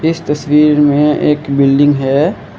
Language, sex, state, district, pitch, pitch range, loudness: Hindi, male, Assam, Kamrup Metropolitan, 150 Hz, 145-150 Hz, -11 LUFS